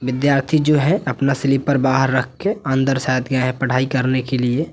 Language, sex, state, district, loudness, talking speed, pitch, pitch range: Hindi, male, Bihar, West Champaran, -18 LUFS, 205 wpm, 135 Hz, 130-140 Hz